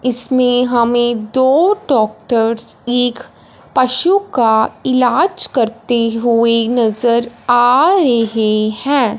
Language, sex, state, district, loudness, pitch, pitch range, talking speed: Hindi, male, Punjab, Fazilka, -13 LUFS, 245 Hz, 230-260 Hz, 85 wpm